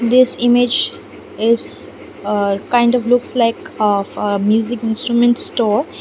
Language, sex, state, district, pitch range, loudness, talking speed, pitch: English, female, Assam, Kamrup Metropolitan, 210-245 Hz, -16 LUFS, 130 wpm, 235 Hz